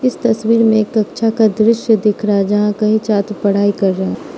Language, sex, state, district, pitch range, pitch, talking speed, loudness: Hindi, female, Manipur, Imphal West, 205-225 Hz, 215 Hz, 235 wpm, -14 LUFS